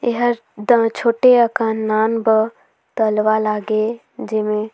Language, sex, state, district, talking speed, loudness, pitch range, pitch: Surgujia, female, Chhattisgarh, Sarguja, 115 wpm, -17 LUFS, 215-235 Hz, 220 Hz